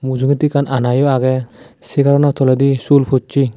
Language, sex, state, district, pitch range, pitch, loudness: Chakma, male, Tripura, Dhalai, 130-140 Hz, 135 Hz, -14 LUFS